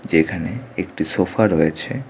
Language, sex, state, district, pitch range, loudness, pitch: Bengali, male, Tripura, West Tripura, 80-110 Hz, -20 LUFS, 90 Hz